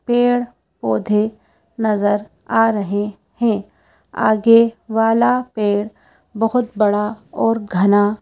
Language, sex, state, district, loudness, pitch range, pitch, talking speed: Hindi, female, Madhya Pradesh, Bhopal, -18 LUFS, 205-230 Hz, 220 Hz, 95 wpm